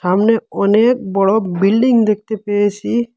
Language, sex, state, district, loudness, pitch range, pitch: Bengali, male, Assam, Hailakandi, -15 LUFS, 200-230 Hz, 210 Hz